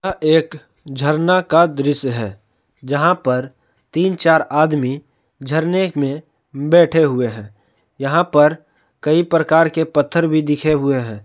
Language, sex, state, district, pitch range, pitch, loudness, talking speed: Hindi, male, Jharkhand, Palamu, 130-160 Hz, 150 Hz, -16 LUFS, 135 wpm